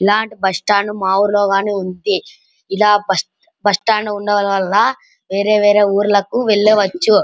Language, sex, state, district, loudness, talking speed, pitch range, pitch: Telugu, male, Andhra Pradesh, Anantapur, -15 LUFS, 130 wpm, 195-210 Hz, 205 Hz